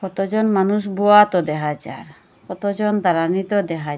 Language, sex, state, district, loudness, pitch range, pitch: Bengali, female, Assam, Hailakandi, -18 LUFS, 165-205 Hz, 195 Hz